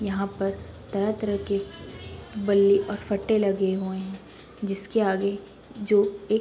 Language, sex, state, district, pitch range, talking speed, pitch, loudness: Hindi, female, Uttar Pradesh, Budaun, 195-205 Hz, 150 wpm, 200 Hz, -25 LUFS